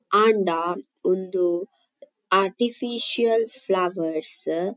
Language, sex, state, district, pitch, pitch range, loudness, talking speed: Tulu, female, Karnataka, Dakshina Kannada, 195 Hz, 180-235 Hz, -23 LUFS, 65 wpm